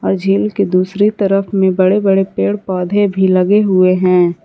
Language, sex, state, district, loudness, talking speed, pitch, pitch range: Hindi, female, Jharkhand, Garhwa, -13 LUFS, 175 wpm, 195 Hz, 185-200 Hz